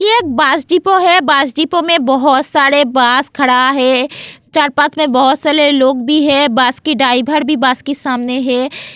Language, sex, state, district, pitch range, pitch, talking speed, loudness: Hindi, female, Goa, North and South Goa, 260-305 Hz, 285 Hz, 190 wpm, -11 LUFS